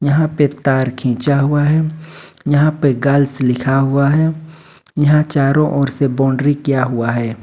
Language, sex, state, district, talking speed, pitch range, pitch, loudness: Hindi, male, Jharkhand, Ranchi, 160 wpm, 135-150 Hz, 140 Hz, -15 LUFS